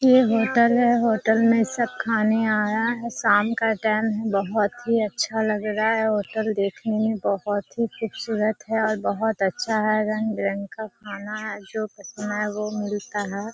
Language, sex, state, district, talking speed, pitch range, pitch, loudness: Hindi, female, Bihar, Kishanganj, 180 wpm, 210-225 Hz, 215 Hz, -23 LUFS